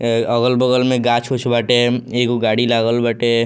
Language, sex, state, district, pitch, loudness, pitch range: Bhojpuri, male, Bihar, Muzaffarpur, 120 Hz, -16 LUFS, 115-125 Hz